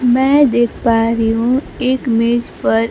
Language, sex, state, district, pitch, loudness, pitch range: Hindi, female, Bihar, Kaimur, 235 Hz, -14 LUFS, 230-255 Hz